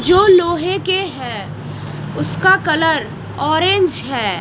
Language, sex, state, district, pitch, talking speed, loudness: Hindi, female, Odisha, Nuapada, 325 Hz, 110 wpm, -15 LUFS